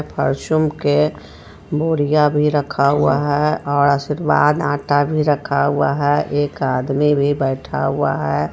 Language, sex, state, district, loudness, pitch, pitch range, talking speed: Hindi, female, Jharkhand, Ranchi, -17 LUFS, 145 Hz, 140-150 Hz, 140 wpm